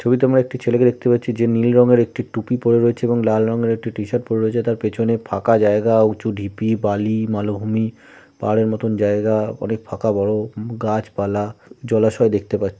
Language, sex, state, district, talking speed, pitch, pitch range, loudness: Bengali, male, West Bengal, Malda, 185 wpm, 110 Hz, 105-115 Hz, -19 LUFS